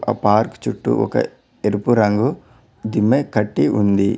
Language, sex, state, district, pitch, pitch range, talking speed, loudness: Telugu, male, Telangana, Mahabubabad, 105 Hz, 105-120 Hz, 130 wpm, -18 LUFS